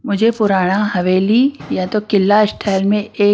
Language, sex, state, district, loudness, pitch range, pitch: Hindi, female, Maharashtra, Washim, -15 LUFS, 195-215 Hz, 205 Hz